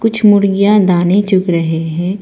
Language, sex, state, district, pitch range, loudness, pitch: Hindi, female, Arunachal Pradesh, Papum Pare, 175-205 Hz, -12 LUFS, 190 Hz